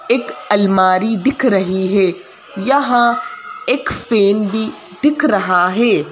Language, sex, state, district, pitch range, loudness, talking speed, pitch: Hindi, female, Madhya Pradesh, Bhopal, 195-275 Hz, -15 LUFS, 120 wpm, 220 Hz